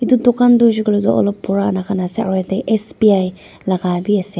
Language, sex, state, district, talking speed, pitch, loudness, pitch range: Nagamese, female, Nagaland, Dimapur, 230 wpm, 200 Hz, -16 LUFS, 190-225 Hz